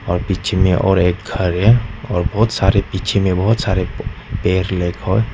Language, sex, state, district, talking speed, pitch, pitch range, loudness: Hindi, male, Nagaland, Dimapur, 235 wpm, 95 Hz, 90-110 Hz, -17 LUFS